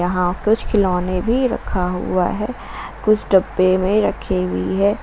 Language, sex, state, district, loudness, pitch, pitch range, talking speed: Hindi, female, Jharkhand, Garhwa, -19 LUFS, 190 Hz, 180-210 Hz, 155 wpm